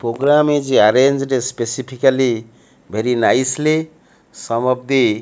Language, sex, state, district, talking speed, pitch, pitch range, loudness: English, male, Odisha, Malkangiri, 125 wpm, 130 Hz, 120-140 Hz, -16 LUFS